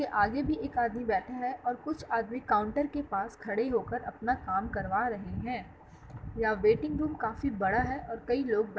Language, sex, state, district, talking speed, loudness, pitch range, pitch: Hindi, female, Uttar Pradesh, Muzaffarnagar, 200 wpm, -32 LUFS, 210-250 Hz, 230 Hz